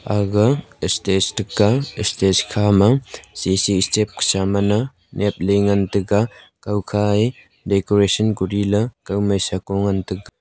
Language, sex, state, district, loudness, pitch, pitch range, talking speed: Wancho, male, Arunachal Pradesh, Longding, -19 LUFS, 100 Hz, 95-105 Hz, 70 wpm